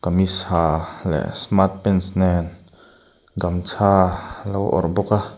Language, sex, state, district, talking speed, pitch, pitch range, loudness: Mizo, male, Mizoram, Aizawl, 125 wpm, 95 Hz, 90-100 Hz, -20 LUFS